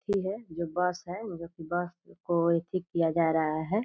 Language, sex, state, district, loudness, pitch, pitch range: Hindi, female, Bihar, Purnia, -30 LUFS, 175 Hz, 170-180 Hz